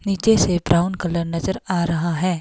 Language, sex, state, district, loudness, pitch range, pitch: Hindi, female, Himachal Pradesh, Shimla, -20 LUFS, 170-185 Hz, 175 Hz